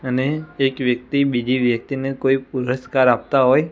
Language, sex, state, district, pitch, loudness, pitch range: Gujarati, male, Gujarat, Gandhinagar, 130 Hz, -19 LUFS, 125-135 Hz